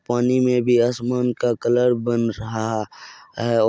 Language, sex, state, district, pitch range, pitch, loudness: Maithili, male, Bihar, Madhepura, 115-125 Hz, 120 Hz, -20 LUFS